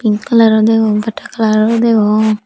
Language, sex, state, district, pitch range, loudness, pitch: Chakma, female, Tripura, Dhalai, 215-225 Hz, -12 LUFS, 220 Hz